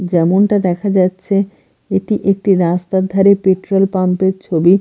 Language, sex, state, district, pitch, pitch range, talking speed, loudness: Bengali, female, Bihar, Katihar, 190 Hz, 185-195 Hz, 135 wpm, -14 LUFS